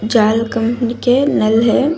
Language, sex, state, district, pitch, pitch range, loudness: Hindi, female, Karnataka, Koppal, 235 Hz, 225-250 Hz, -14 LUFS